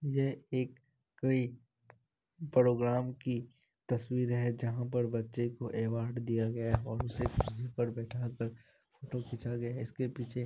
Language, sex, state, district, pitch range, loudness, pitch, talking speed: Hindi, male, Bihar, Kishanganj, 120-125 Hz, -35 LUFS, 120 Hz, 155 wpm